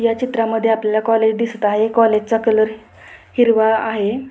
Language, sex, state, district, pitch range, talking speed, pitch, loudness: Marathi, female, Maharashtra, Pune, 220-230 Hz, 140 wpm, 225 Hz, -16 LUFS